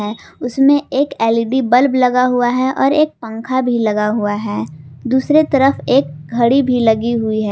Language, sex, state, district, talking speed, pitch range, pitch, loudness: Hindi, female, Jharkhand, Palamu, 175 wpm, 220-265 Hz, 245 Hz, -15 LUFS